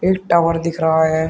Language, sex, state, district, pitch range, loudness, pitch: Hindi, male, Uttar Pradesh, Shamli, 160-170 Hz, -16 LUFS, 165 Hz